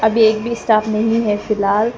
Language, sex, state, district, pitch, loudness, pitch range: Hindi, female, Arunachal Pradesh, Papum Pare, 220 Hz, -16 LUFS, 215-225 Hz